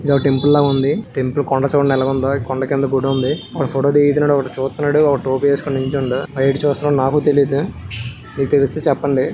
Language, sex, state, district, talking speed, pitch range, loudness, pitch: Telugu, male, Andhra Pradesh, Visakhapatnam, 195 wpm, 135-145 Hz, -17 LUFS, 140 Hz